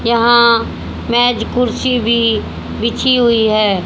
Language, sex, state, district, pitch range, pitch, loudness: Hindi, female, Haryana, Jhajjar, 225-245 Hz, 235 Hz, -13 LUFS